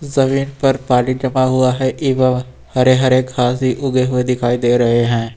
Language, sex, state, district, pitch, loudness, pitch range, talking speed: Hindi, male, Uttar Pradesh, Lucknow, 130 Hz, -15 LUFS, 125-130 Hz, 190 wpm